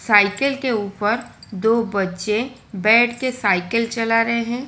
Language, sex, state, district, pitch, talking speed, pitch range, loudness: Hindi, female, Gujarat, Valsad, 230 Hz, 140 wpm, 205-240 Hz, -19 LUFS